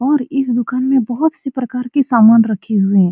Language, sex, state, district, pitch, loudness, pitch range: Hindi, female, Bihar, Supaul, 250 Hz, -14 LUFS, 225-270 Hz